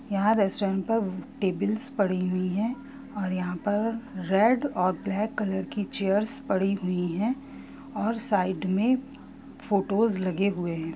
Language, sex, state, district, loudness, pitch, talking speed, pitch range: Hindi, female, Jharkhand, Sahebganj, -27 LUFS, 200 Hz, 150 wpm, 190-225 Hz